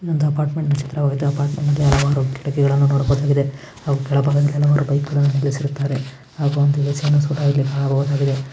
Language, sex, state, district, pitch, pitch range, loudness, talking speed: Kannada, male, Karnataka, Gulbarga, 140 Hz, 140-145 Hz, -19 LUFS, 110 wpm